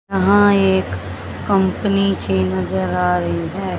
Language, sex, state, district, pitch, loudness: Hindi, female, Haryana, Jhajjar, 95 Hz, -17 LUFS